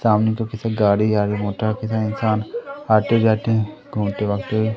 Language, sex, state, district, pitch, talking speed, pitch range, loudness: Hindi, male, Madhya Pradesh, Umaria, 110 Hz, 165 wpm, 105-110 Hz, -20 LUFS